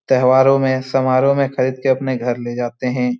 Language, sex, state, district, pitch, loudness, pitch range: Hindi, male, Bihar, Lakhisarai, 130 Hz, -17 LUFS, 125-130 Hz